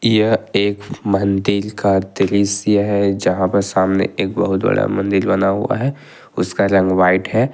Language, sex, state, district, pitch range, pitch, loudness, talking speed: Hindi, male, Jharkhand, Ranchi, 95-105 Hz, 100 Hz, -17 LUFS, 160 wpm